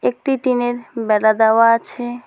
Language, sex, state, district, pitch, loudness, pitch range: Bengali, female, West Bengal, Alipurduar, 235 Hz, -16 LUFS, 220-245 Hz